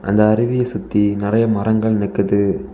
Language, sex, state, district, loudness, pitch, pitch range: Tamil, male, Tamil Nadu, Kanyakumari, -17 LUFS, 105 Hz, 100-110 Hz